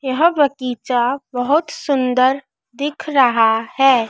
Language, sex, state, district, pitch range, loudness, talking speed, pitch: Hindi, female, Madhya Pradesh, Dhar, 245-285 Hz, -17 LUFS, 105 wpm, 265 Hz